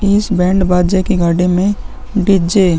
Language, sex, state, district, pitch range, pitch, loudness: Hindi, male, Uttar Pradesh, Muzaffarnagar, 180-200 Hz, 185 Hz, -13 LUFS